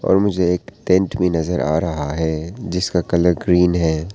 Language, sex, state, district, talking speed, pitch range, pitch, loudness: Hindi, male, Arunachal Pradesh, Papum Pare, 190 wpm, 80-90 Hz, 90 Hz, -18 LUFS